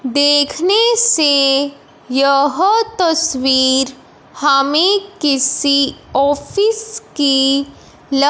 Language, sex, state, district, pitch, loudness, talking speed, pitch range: Hindi, male, Punjab, Fazilka, 285 Hz, -14 LUFS, 65 wpm, 275-360 Hz